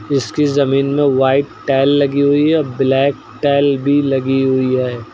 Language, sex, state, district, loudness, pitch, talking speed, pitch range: Hindi, male, Uttar Pradesh, Lucknow, -15 LUFS, 140 Hz, 175 wpm, 135-140 Hz